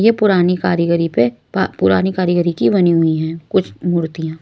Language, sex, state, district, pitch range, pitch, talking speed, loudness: Hindi, female, Maharashtra, Mumbai Suburban, 160-180 Hz, 170 Hz, 165 wpm, -16 LUFS